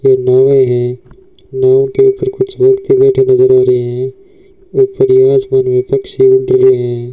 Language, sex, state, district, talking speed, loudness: Hindi, male, Rajasthan, Bikaner, 120 wpm, -10 LUFS